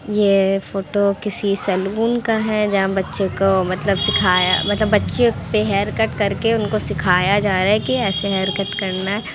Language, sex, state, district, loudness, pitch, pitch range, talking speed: Hindi, female, Bihar, Muzaffarpur, -18 LUFS, 200 Hz, 195-210 Hz, 165 wpm